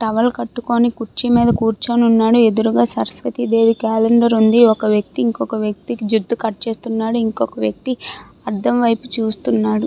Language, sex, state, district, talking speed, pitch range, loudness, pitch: Telugu, female, Andhra Pradesh, Visakhapatnam, 140 wpm, 210-235 Hz, -17 LUFS, 225 Hz